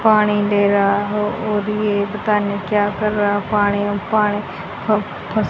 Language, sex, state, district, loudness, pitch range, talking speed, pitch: Hindi, female, Haryana, Jhajjar, -18 LUFS, 205-210 Hz, 185 wpm, 210 Hz